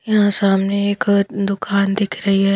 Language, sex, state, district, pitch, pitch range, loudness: Hindi, female, Punjab, Pathankot, 200 Hz, 195-205 Hz, -17 LUFS